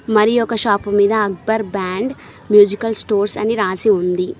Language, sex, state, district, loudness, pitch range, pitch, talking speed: Telugu, female, Telangana, Mahabubabad, -16 LUFS, 200-220 Hz, 210 Hz, 150 wpm